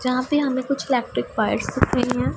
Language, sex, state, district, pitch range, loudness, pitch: Hindi, female, Punjab, Pathankot, 255-275 Hz, -22 LUFS, 260 Hz